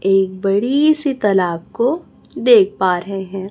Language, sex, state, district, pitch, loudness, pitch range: Hindi, female, Chhattisgarh, Raipur, 195 Hz, -16 LUFS, 190-280 Hz